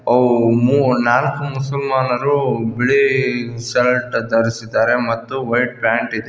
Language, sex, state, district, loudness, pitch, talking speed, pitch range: Kannada, male, Karnataka, Koppal, -17 LUFS, 125 Hz, 95 wpm, 120-135 Hz